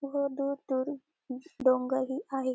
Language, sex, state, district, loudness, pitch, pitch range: Marathi, female, Maharashtra, Dhule, -31 LUFS, 270 Hz, 260-280 Hz